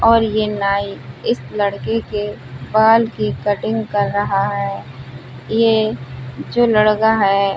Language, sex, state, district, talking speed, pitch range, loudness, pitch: Hindi, female, Uttar Pradesh, Budaun, 135 wpm, 130-220 Hz, -17 LUFS, 205 Hz